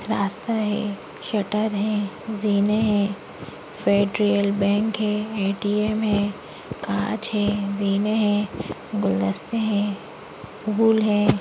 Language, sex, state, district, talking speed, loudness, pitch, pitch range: Hindi, female, Chhattisgarh, Bastar, 100 wpm, -23 LUFS, 210 Hz, 200-215 Hz